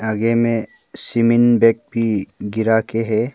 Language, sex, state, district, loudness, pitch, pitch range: Hindi, male, Arunachal Pradesh, Papum Pare, -18 LUFS, 115 Hz, 110-115 Hz